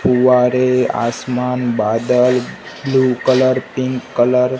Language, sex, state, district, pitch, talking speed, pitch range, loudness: Hindi, male, Gujarat, Gandhinagar, 125 Hz, 105 wpm, 125-130 Hz, -15 LUFS